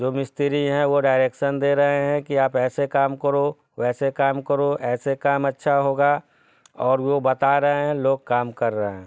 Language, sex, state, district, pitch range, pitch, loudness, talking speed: Hindi, male, Bihar, Sitamarhi, 130-145 Hz, 140 Hz, -21 LUFS, 205 wpm